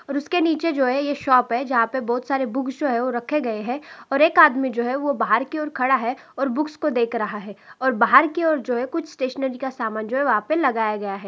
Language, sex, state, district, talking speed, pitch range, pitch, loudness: Hindi, female, Maharashtra, Aurangabad, 280 wpm, 235-290 Hz, 265 Hz, -21 LUFS